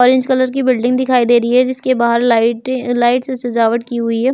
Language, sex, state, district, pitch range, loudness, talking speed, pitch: Hindi, female, Uttar Pradesh, Ghazipur, 235-255 Hz, -14 LUFS, 235 wpm, 245 Hz